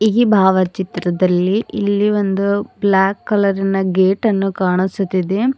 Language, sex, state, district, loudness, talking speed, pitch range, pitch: Kannada, female, Karnataka, Bidar, -16 LUFS, 85 wpm, 190-205 Hz, 195 Hz